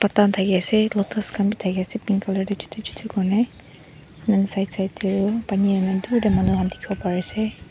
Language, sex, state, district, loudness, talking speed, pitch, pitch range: Nagamese, female, Nagaland, Dimapur, -22 LUFS, 210 wpm, 195 Hz, 190-215 Hz